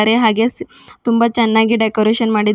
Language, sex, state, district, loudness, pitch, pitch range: Kannada, female, Karnataka, Bidar, -15 LUFS, 225 Hz, 220-235 Hz